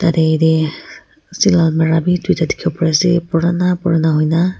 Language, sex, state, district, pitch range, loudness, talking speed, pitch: Nagamese, female, Nagaland, Kohima, 160-180 Hz, -15 LUFS, 155 wpm, 165 Hz